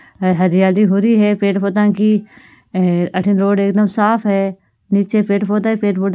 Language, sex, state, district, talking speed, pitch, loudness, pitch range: Marwari, female, Rajasthan, Nagaur, 185 wpm, 200 Hz, -15 LUFS, 195-210 Hz